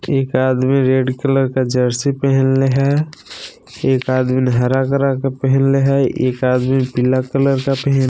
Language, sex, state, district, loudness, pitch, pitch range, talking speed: Hindi, male, Jharkhand, Palamu, -16 LUFS, 135 Hz, 130-135 Hz, 155 wpm